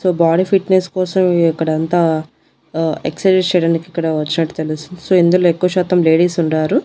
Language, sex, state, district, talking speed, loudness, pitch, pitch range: Telugu, female, Andhra Pradesh, Annamaya, 160 wpm, -15 LUFS, 170 Hz, 160-180 Hz